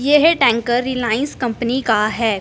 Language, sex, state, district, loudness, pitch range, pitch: Hindi, female, Punjab, Fazilka, -17 LUFS, 230-265 Hz, 240 Hz